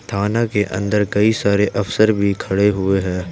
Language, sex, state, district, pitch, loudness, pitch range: Hindi, male, Jharkhand, Ranchi, 100 Hz, -17 LUFS, 100-105 Hz